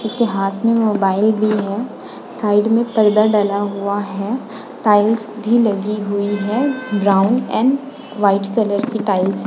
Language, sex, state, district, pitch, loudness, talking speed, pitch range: Hindi, female, Uttar Pradesh, Muzaffarnagar, 215 Hz, -17 LUFS, 160 wpm, 200-230 Hz